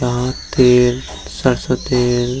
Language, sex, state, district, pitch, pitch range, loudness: Hindi, male, Bihar, Gaya, 125 Hz, 120-125 Hz, -16 LUFS